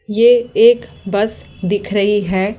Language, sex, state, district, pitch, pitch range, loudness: Hindi, male, Delhi, New Delhi, 210 Hz, 200-235 Hz, -15 LUFS